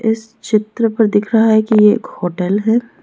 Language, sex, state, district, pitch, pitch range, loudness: Hindi, female, Arunachal Pradesh, Lower Dibang Valley, 220 Hz, 210-225 Hz, -14 LUFS